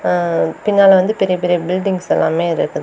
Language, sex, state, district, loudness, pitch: Tamil, female, Tamil Nadu, Kanyakumari, -15 LUFS, 180 Hz